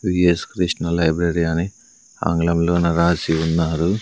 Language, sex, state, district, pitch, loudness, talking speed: Telugu, male, Andhra Pradesh, Sri Satya Sai, 85 Hz, -19 LUFS, 105 wpm